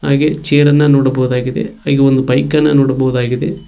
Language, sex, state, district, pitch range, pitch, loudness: Kannada, male, Karnataka, Koppal, 130-145 Hz, 135 Hz, -13 LUFS